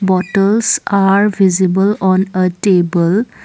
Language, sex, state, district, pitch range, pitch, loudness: English, female, Assam, Kamrup Metropolitan, 185-200 Hz, 195 Hz, -13 LUFS